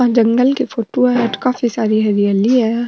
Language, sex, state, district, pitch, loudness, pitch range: Marwari, female, Rajasthan, Nagaur, 235 Hz, -15 LUFS, 220-250 Hz